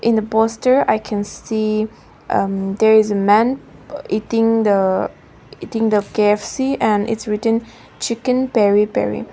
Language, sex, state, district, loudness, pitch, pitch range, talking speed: English, female, Nagaland, Dimapur, -17 LUFS, 220 Hz, 210-225 Hz, 150 wpm